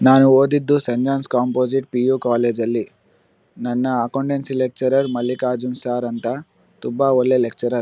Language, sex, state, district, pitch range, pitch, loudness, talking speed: Kannada, male, Karnataka, Bellary, 120-135 Hz, 125 Hz, -19 LUFS, 145 wpm